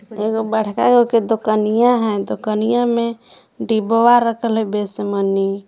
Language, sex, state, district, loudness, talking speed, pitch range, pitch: Magahi, female, Jharkhand, Palamu, -17 LUFS, 125 wpm, 210-235 Hz, 220 Hz